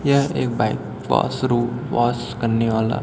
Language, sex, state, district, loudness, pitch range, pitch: Hindi, male, Chhattisgarh, Raipur, -21 LUFS, 115-130 Hz, 120 Hz